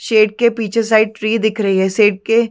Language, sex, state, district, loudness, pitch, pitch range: Hindi, female, Chhattisgarh, Sarguja, -15 LUFS, 220 Hz, 210-225 Hz